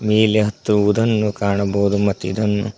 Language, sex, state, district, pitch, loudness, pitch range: Kannada, male, Karnataka, Koppal, 105 Hz, -18 LUFS, 100-110 Hz